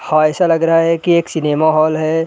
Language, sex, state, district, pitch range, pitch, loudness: Hindi, male, Uttar Pradesh, Gorakhpur, 155-165 Hz, 165 Hz, -14 LUFS